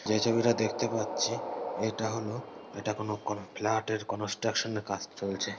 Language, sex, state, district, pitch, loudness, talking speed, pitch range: Bengali, male, West Bengal, North 24 Parganas, 105 Hz, -32 LUFS, 170 wpm, 100-110 Hz